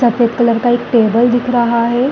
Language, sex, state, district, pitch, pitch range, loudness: Hindi, female, Chhattisgarh, Balrampur, 240 Hz, 235-245 Hz, -13 LUFS